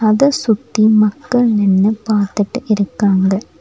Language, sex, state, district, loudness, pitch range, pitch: Tamil, female, Tamil Nadu, Nilgiris, -14 LUFS, 200-225 Hz, 215 Hz